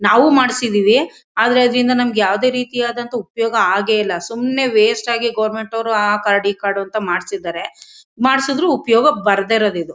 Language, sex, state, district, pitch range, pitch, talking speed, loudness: Kannada, female, Karnataka, Mysore, 210-250 Hz, 230 Hz, 155 wpm, -16 LUFS